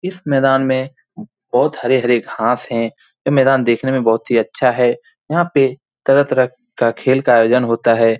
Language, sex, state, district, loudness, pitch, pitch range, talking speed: Hindi, male, Bihar, Saran, -16 LUFS, 130 Hz, 120-135 Hz, 175 wpm